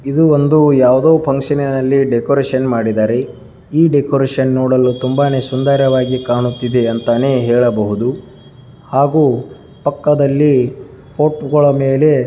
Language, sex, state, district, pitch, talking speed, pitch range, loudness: Kannada, male, Karnataka, Dharwad, 135 Hz, 100 wpm, 125-140 Hz, -14 LUFS